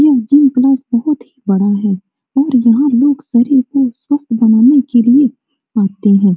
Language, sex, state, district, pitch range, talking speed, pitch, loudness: Hindi, female, Bihar, Supaul, 225-280 Hz, 170 wpm, 255 Hz, -12 LUFS